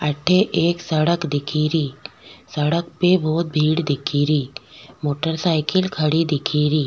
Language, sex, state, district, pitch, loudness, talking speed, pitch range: Rajasthani, female, Rajasthan, Nagaur, 155 Hz, -20 LUFS, 140 wpm, 150-170 Hz